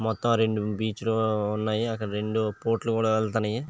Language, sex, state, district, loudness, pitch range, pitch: Telugu, male, Andhra Pradesh, Visakhapatnam, -26 LUFS, 110-115 Hz, 110 Hz